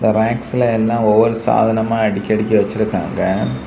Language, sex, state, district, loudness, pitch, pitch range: Tamil, male, Tamil Nadu, Kanyakumari, -16 LUFS, 110 Hz, 110-115 Hz